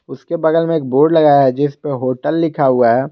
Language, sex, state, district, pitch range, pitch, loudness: Hindi, male, Jharkhand, Garhwa, 130-160 Hz, 145 Hz, -14 LUFS